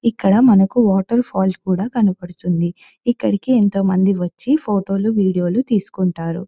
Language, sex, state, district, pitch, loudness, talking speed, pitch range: Telugu, female, Telangana, Nalgonda, 195 Hz, -17 LUFS, 140 wpm, 185-230 Hz